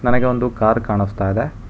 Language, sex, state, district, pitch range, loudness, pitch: Kannada, male, Karnataka, Bangalore, 105-125 Hz, -19 LUFS, 115 Hz